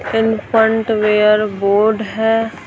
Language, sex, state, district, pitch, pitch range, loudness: Hindi, female, Bihar, Patna, 220 Hz, 210-225 Hz, -15 LUFS